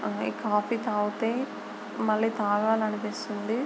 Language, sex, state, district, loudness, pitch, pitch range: Telugu, female, Andhra Pradesh, Chittoor, -28 LUFS, 215 Hz, 210-225 Hz